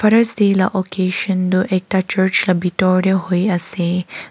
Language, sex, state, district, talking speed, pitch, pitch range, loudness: Nagamese, female, Nagaland, Kohima, 165 wpm, 185 Hz, 185-190 Hz, -17 LUFS